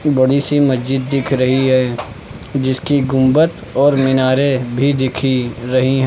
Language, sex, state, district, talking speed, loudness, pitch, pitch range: Hindi, male, Uttar Pradesh, Lucknow, 140 wpm, -15 LUFS, 130 Hz, 130-140 Hz